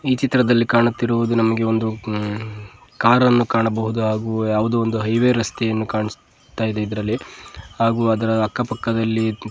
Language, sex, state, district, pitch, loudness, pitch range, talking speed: Kannada, male, Karnataka, Mysore, 115 Hz, -19 LUFS, 110-115 Hz, 125 wpm